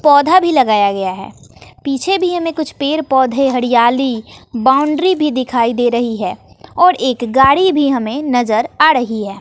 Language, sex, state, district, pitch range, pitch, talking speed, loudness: Hindi, female, Bihar, West Champaran, 235-300 Hz, 265 Hz, 170 wpm, -14 LUFS